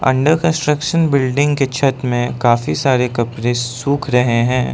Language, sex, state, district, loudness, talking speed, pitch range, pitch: Hindi, male, Arunachal Pradesh, Lower Dibang Valley, -16 LUFS, 150 wpm, 120-145 Hz, 130 Hz